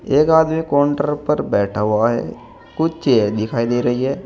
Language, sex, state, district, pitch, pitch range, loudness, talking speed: Hindi, male, Uttar Pradesh, Saharanpur, 130 Hz, 110-150 Hz, -17 LUFS, 185 wpm